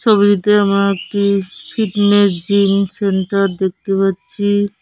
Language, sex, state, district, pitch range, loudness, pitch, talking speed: Bengali, female, West Bengal, Cooch Behar, 195-205 Hz, -15 LUFS, 200 Hz, 100 wpm